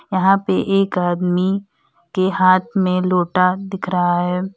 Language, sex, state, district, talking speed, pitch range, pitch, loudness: Hindi, female, Uttar Pradesh, Lalitpur, 145 wpm, 180-195 Hz, 185 Hz, -18 LUFS